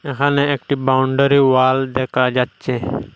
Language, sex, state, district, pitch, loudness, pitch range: Bengali, male, Assam, Hailakandi, 130 Hz, -17 LUFS, 130-140 Hz